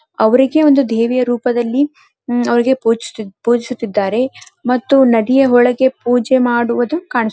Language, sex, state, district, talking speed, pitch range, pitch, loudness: Kannada, female, Karnataka, Dharwad, 100 wpm, 235-260 Hz, 245 Hz, -14 LUFS